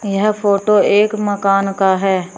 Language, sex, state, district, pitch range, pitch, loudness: Hindi, female, Uttar Pradesh, Shamli, 195-210 Hz, 200 Hz, -15 LUFS